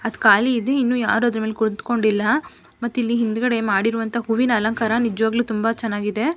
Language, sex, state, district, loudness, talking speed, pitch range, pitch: Kannada, female, Karnataka, Mysore, -20 LUFS, 160 wpm, 220-240 Hz, 230 Hz